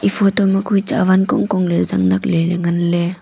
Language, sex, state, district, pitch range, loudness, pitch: Wancho, female, Arunachal Pradesh, Longding, 170-195 Hz, -16 LUFS, 180 Hz